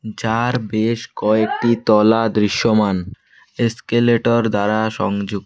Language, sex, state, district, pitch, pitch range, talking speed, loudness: Bengali, male, West Bengal, Alipurduar, 110 Hz, 105-115 Hz, 90 wpm, -17 LUFS